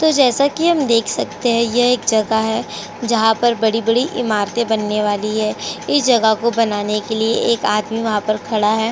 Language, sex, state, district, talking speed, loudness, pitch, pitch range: Hindi, female, Uttar Pradesh, Jyotiba Phule Nagar, 180 wpm, -17 LUFS, 225 Hz, 215-240 Hz